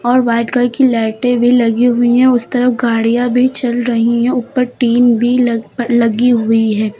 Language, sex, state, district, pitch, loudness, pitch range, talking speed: Hindi, female, Uttar Pradesh, Lucknow, 240 Hz, -13 LUFS, 230-245 Hz, 205 wpm